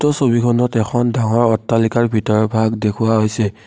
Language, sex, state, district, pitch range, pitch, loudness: Assamese, male, Assam, Kamrup Metropolitan, 110-120 Hz, 115 Hz, -16 LUFS